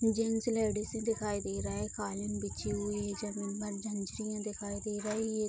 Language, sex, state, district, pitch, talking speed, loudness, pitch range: Hindi, female, Bihar, Vaishali, 210 Hz, 195 wpm, -36 LUFS, 200-215 Hz